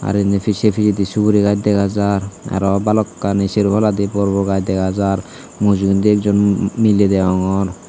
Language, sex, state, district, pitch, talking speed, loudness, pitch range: Chakma, male, Tripura, Dhalai, 100 Hz, 165 wpm, -16 LUFS, 95-105 Hz